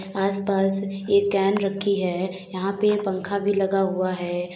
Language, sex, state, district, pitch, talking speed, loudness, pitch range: Hindi, female, Uttar Pradesh, Hamirpur, 195 Hz, 160 wpm, -23 LUFS, 185-200 Hz